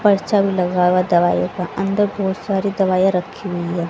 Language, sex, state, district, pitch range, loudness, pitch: Hindi, female, Haryana, Jhajjar, 180-195 Hz, -18 LUFS, 190 Hz